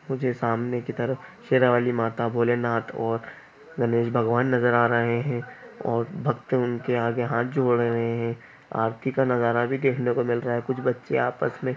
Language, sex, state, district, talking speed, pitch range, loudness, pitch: Hindi, male, Bihar, Gopalganj, 180 wpm, 115-125 Hz, -25 LUFS, 120 Hz